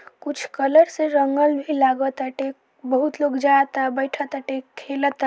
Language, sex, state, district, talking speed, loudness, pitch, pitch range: Bhojpuri, female, Bihar, Saran, 135 wpm, -21 LUFS, 275 Hz, 270-290 Hz